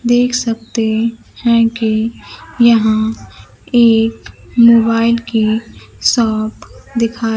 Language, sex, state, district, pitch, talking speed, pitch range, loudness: Hindi, female, Bihar, Kaimur, 230 Hz, 80 wpm, 225-235 Hz, -14 LUFS